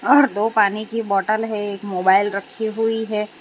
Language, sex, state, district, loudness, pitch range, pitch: Hindi, female, Gujarat, Valsad, -20 LUFS, 200-225 Hz, 215 Hz